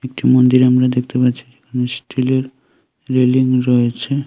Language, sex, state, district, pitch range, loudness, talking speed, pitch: Bengali, male, Tripura, Unakoti, 125-130 Hz, -15 LUFS, 110 wpm, 125 Hz